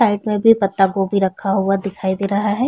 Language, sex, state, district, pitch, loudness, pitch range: Hindi, female, Chhattisgarh, Bilaspur, 195 Hz, -17 LUFS, 195-210 Hz